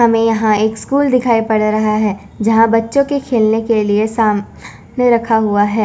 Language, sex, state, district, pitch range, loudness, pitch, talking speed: Hindi, female, Chandigarh, Chandigarh, 215-235 Hz, -14 LUFS, 225 Hz, 195 wpm